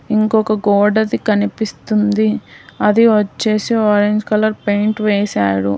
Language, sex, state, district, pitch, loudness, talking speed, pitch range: Telugu, female, Telangana, Hyderabad, 210 Hz, -15 LUFS, 105 wpm, 205-215 Hz